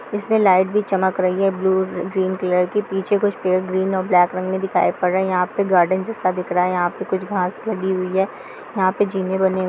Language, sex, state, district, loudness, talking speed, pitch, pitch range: Hindi, female, Bihar, Kishanganj, -19 LUFS, 260 wpm, 190 Hz, 185-195 Hz